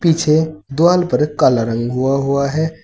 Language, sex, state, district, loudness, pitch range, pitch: Hindi, male, Uttar Pradesh, Saharanpur, -16 LUFS, 135-160 Hz, 150 Hz